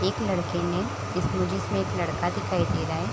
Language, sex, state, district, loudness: Hindi, female, Bihar, Sitamarhi, -27 LUFS